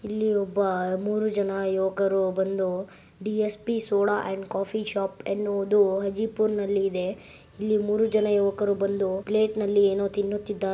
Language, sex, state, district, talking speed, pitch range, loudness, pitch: Kannada, female, Karnataka, Gulbarga, 130 wpm, 195-210 Hz, -26 LUFS, 200 Hz